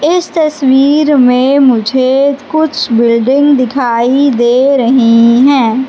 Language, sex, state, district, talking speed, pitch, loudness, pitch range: Hindi, female, Madhya Pradesh, Katni, 100 wpm, 265 Hz, -9 LUFS, 245-285 Hz